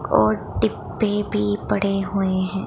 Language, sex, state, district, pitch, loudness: Hindi, female, Punjab, Pathankot, 185 Hz, -22 LUFS